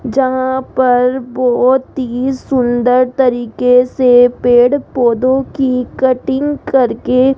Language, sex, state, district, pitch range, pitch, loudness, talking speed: Hindi, female, Rajasthan, Jaipur, 245-265 Hz, 255 Hz, -13 LUFS, 105 wpm